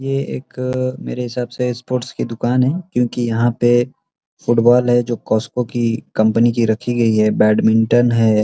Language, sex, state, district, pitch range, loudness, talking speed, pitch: Hindi, male, Uttar Pradesh, Ghazipur, 115-125 Hz, -17 LUFS, 185 wpm, 120 Hz